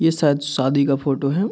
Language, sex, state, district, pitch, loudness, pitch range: Hindi, male, Bihar, Kishanganj, 140 Hz, -19 LUFS, 140-160 Hz